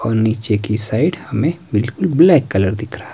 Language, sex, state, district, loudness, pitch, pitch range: Hindi, male, Himachal Pradesh, Shimla, -16 LUFS, 110 Hz, 105-160 Hz